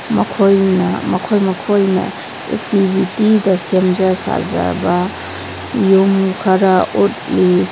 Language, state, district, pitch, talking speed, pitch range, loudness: Manipuri, Manipur, Imphal West, 190 Hz, 70 wpm, 185-200 Hz, -15 LUFS